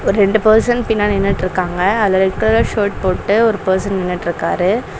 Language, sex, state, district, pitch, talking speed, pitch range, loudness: Tamil, female, Tamil Nadu, Chennai, 200 Hz, 155 wpm, 185-220 Hz, -15 LUFS